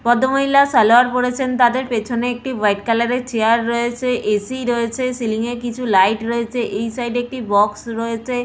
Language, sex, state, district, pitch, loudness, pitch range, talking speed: Bengali, female, West Bengal, Paschim Medinipur, 240 Hz, -18 LUFS, 230-250 Hz, 155 wpm